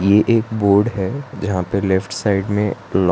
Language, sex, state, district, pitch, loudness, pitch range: Hindi, male, Gujarat, Valsad, 100 Hz, -18 LUFS, 95-105 Hz